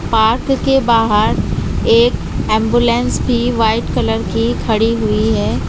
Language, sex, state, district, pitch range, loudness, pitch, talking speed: Hindi, female, Uttar Pradesh, Lucknow, 220-240 Hz, -15 LUFS, 225 Hz, 125 wpm